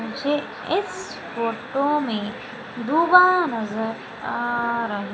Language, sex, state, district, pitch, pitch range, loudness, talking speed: Hindi, female, Madhya Pradesh, Umaria, 240 Hz, 225-290 Hz, -22 LUFS, 95 wpm